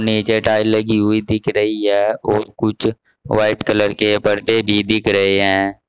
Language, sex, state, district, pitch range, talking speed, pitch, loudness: Hindi, male, Uttar Pradesh, Saharanpur, 105-110 Hz, 175 wpm, 105 Hz, -16 LUFS